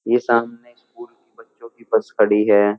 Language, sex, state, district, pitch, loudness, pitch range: Hindi, male, Uttar Pradesh, Jyotiba Phule Nagar, 115 Hz, -18 LUFS, 105-120 Hz